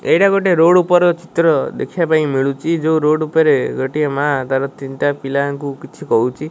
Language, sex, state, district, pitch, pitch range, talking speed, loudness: Odia, male, Odisha, Malkangiri, 155 Hz, 140-170 Hz, 165 wpm, -16 LUFS